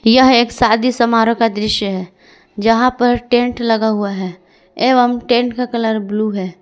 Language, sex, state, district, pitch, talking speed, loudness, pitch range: Hindi, female, Jharkhand, Garhwa, 230 Hz, 170 wpm, -15 LUFS, 210-245 Hz